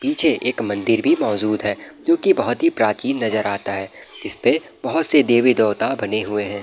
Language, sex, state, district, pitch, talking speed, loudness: Hindi, male, Bihar, Madhepura, 120 Hz, 210 wpm, -19 LUFS